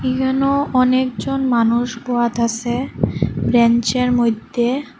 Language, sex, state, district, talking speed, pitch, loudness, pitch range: Bengali, female, Assam, Hailakandi, 110 wpm, 245 Hz, -18 LUFS, 235-260 Hz